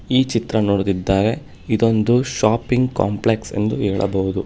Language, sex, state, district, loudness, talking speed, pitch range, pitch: Kannada, male, Karnataka, Bangalore, -19 LUFS, 110 wpm, 100-115 Hz, 110 Hz